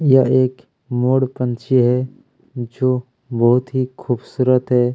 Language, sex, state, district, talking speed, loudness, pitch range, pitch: Hindi, male, Chhattisgarh, Kabirdham, 120 wpm, -18 LUFS, 125-130 Hz, 125 Hz